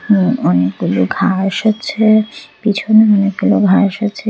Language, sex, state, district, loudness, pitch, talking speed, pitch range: Bengali, female, Tripura, West Tripura, -13 LUFS, 210 Hz, 110 wpm, 190-220 Hz